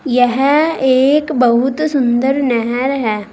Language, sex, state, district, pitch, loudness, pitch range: Hindi, female, Uttar Pradesh, Saharanpur, 260 Hz, -14 LUFS, 245-280 Hz